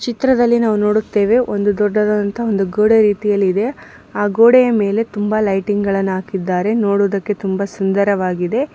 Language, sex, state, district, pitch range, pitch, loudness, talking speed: Kannada, female, Karnataka, Mysore, 200-220 Hz, 205 Hz, -16 LUFS, 125 wpm